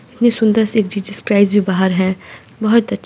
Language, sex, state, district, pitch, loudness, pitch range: Hindi, female, Bihar, Muzaffarpur, 205 Hz, -15 LUFS, 195-220 Hz